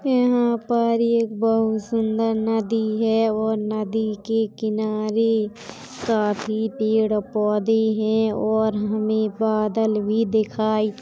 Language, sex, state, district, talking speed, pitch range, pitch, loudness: Hindi, female, Uttar Pradesh, Hamirpur, 115 wpm, 215-225 Hz, 220 Hz, -22 LUFS